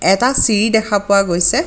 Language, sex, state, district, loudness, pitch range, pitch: Assamese, female, Assam, Kamrup Metropolitan, -14 LUFS, 200-220 Hz, 210 Hz